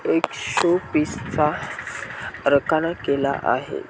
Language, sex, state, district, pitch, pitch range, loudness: Marathi, female, Maharashtra, Washim, 150 Hz, 140-165 Hz, -22 LUFS